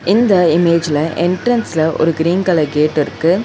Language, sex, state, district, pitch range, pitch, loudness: Tamil, female, Tamil Nadu, Chennai, 160-180 Hz, 170 Hz, -14 LUFS